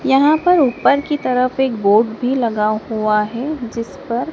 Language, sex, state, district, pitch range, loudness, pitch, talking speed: Hindi, female, Madhya Pradesh, Dhar, 225-275 Hz, -17 LUFS, 250 Hz, 180 wpm